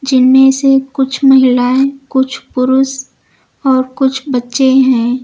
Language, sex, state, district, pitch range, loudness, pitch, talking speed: Hindi, female, Uttar Pradesh, Lucknow, 255-270 Hz, -11 LUFS, 265 Hz, 115 wpm